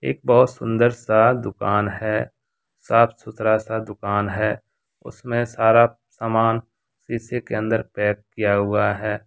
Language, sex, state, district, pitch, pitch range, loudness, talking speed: Hindi, male, Jharkhand, Deoghar, 110 Hz, 105-115 Hz, -21 LUFS, 135 wpm